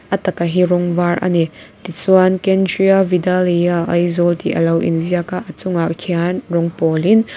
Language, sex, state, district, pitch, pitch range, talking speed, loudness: Mizo, female, Mizoram, Aizawl, 175 Hz, 170-185 Hz, 185 wpm, -16 LUFS